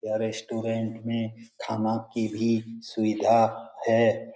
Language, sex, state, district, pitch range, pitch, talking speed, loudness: Hindi, male, Bihar, Lakhisarai, 110-115 Hz, 115 Hz, 110 wpm, -27 LUFS